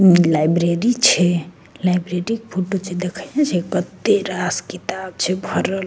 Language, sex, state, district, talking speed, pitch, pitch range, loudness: Maithili, female, Bihar, Begusarai, 155 wpm, 185 Hz, 175-195 Hz, -19 LUFS